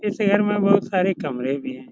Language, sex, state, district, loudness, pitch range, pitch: Hindi, male, Uttar Pradesh, Etah, -21 LUFS, 140-205 Hz, 195 Hz